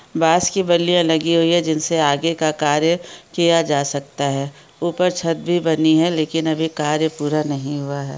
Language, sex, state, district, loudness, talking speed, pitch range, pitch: Hindi, female, Chhattisgarh, Jashpur, -18 LUFS, 190 wpm, 145-170 Hz, 160 Hz